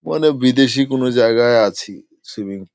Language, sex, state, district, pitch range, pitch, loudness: Bengali, male, West Bengal, Paschim Medinipur, 120-150 Hz, 130 Hz, -15 LUFS